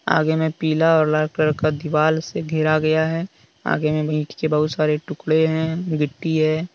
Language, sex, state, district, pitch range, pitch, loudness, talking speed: Hindi, male, Jharkhand, Deoghar, 155-160 Hz, 155 Hz, -20 LUFS, 205 wpm